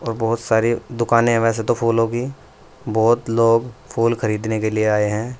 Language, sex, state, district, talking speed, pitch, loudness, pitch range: Hindi, male, Uttar Pradesh, Saharanpur, 190 wpm, 115 Hz, -19 LUFS, 110-115 Hz